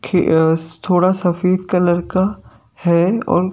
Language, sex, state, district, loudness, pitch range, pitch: Hindi, male, Madhya Pradesh, Bhopal, -16 LUFS, 170-185 Hz, 180 Hz